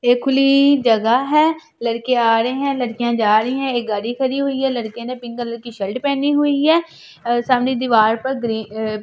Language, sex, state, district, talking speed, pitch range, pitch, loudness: Hindi, female, Delhi, New Delhi, 215 wpm, 230-275 Hz, 245 Hz, -18 LUFS